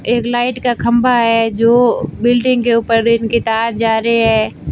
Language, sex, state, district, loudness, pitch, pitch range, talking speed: Hindi, female, Rajasthan, Barmer, -14 LUFS, 235 Hz, 225-240 Hz, 190 wpm